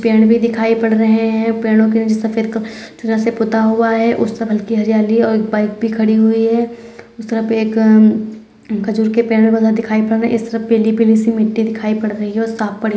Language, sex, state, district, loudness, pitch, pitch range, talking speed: Hindi, male, Bihar, Purnia, -14 LUFS, 225 Hz, 220-225 Hz, 175 wpm